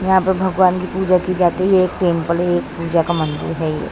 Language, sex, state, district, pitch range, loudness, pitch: Hindi, female, Bihar, Saran, 170-185 Hz, -17 LUFS, 180 Hz